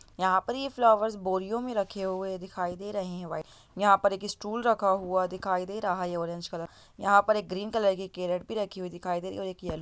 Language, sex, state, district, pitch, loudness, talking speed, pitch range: Hindi, female, Bihar, Lakhisarai, 190 Hz, -29 LUFS, 270 wpm, 180-205 Hz